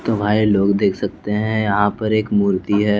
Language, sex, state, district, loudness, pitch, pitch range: Hindi, male, Bihar, West Champaran, -18 LUFS, 105 Hz, 100-110 Hz